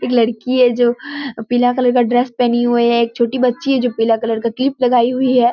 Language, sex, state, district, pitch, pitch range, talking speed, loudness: Hindi, female, Bihar, Kishanganj, 245 Hz, 235-255 Hz, 250 wpm, -15 LUFS